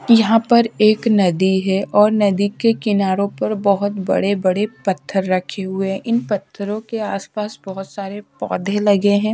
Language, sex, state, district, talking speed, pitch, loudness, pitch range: Hindi, female, Haryana, Rohtak, 185 wpm, 200 Hz, -18 LUFS, 195-215 Hz